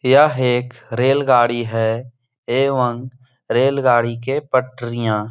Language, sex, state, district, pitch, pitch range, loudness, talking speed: Hindi, male, Bihar, Jahanabad, 125 Hz, 120-130 Hz, -18 LUFS, 100 wpm